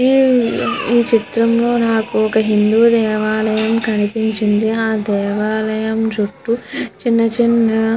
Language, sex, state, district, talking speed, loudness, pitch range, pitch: Telugu, female, Andhra Pradesh, Guntur, 105 wpm, -16 LUFS, 215-235 Hz, 225 Hz